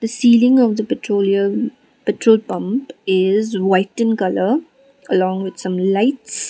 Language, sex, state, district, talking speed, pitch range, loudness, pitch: English, female, Sikkim, Gangtok, 140 wpm, 195-250 Hz, -17 LUFS, 220 Hz